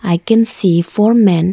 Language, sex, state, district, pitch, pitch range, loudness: English, female, Arunachal Pradesh, Lower Dibang Valley, 195 Hz, 170-225 Hz, -12 LUFS